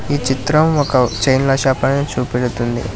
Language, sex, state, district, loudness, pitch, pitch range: Telugu, male, Telangana, Hyderabad, -16 LUFS, 130 Hz, 125-140 Hz